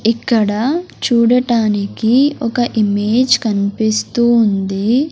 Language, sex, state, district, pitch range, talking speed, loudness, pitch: Telugu, male, Andhra Pradesh, Sri Satya Sai, 210-245 Hz, 70 wpm, -15 LUFS, 230 Hz